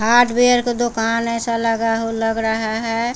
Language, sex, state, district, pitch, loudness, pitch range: Hindi, female, Bihar, Patna, 230 Hz, -18 LUFS, 225-240 Hz